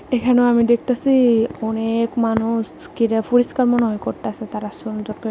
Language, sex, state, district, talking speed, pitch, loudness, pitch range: Bengali, female, Tripura, West Tripura, 145 wpm, 230 Hz, -19 LUFS, 220-245 Hz